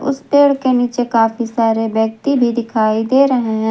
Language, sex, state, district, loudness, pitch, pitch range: Hindi, female, Jharkhand, Garhwa, -15 LUFS, 235 Hz, 225-270 Hz